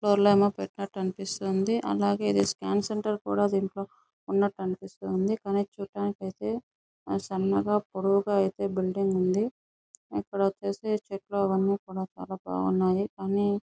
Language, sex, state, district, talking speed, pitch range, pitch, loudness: Telugu, female, Andhra Pradesh, Chittoor, 115 wpm, 190-205 Hz, 195 Hz, -28 LUFS